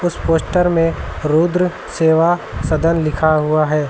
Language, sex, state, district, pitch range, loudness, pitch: Hindi, male, Uttar Pradesh, Lucknow, 155-175 Hz, -16 LUFS, 165 Hz